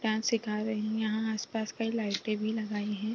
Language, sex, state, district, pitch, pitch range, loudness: Hindi, female, Bihar, East Champaran, 220 Hz, 215-220 Hz, -32 LUFS